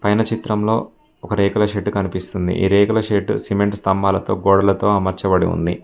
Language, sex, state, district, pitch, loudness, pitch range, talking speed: Telugu, male, Telangana, Mahabubabad, 100 Hz, -18 LUFS, 95-105 Hz, 145 wpm